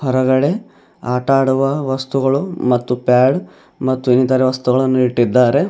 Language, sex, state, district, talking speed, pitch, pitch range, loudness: Kannada, male, Karnataka, Bidar, 95 wpm, 130 Hz, 125-135 Hz, -16 LUFS